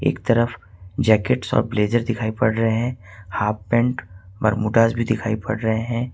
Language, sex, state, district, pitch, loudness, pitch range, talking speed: Hindi, male, Jharkhand, Ranchi, 110 Hz, -21 LUFS, 105-120 Hz, 175 wpm